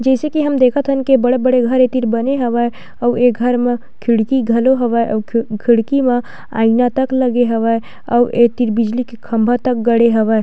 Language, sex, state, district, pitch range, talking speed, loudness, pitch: Chhattisgarhi, female, Chhattisgarh, Sukma, 230-255 Hz, 200 wpm, -15 LUFS, 245 Hz